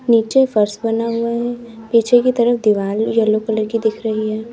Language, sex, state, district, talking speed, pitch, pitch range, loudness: Hindi, female, Uttar Pradesh, Lalitpur, 200 wpm, 225 Hz, 215-235 Hz, -17 LUFS